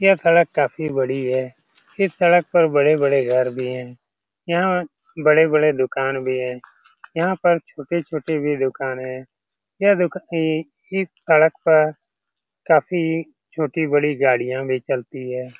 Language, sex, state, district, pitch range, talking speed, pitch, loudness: Hindi, male, Bihar, Saran, 130-165 Hz, 135 wpm, 150 Hz, -19 LUFS